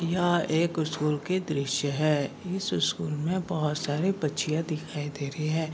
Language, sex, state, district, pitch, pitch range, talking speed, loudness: Hindi, male, Bihar, Kishanganj, 155 Hz, 150-170 Hz, 165 wpm, -28 LUFS